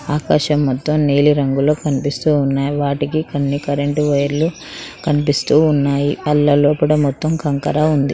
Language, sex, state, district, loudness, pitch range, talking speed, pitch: Telugu, female, Telangana, Mahabubabad, -16 LUFS, 140-150 Hz, 120 wpm, 145 Hz